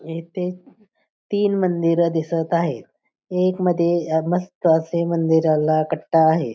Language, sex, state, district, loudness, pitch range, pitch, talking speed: Marathi, female, Maharashtra, Pune, -20 LUFS, 160-180 Hz, 170 Hz, 110 wpm